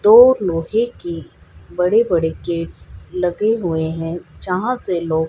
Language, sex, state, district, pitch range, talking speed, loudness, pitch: Hindi, female, Haryana, Jhajjar, 160-215 Hz, 135 wpm, -18 LUFS, 175 Hz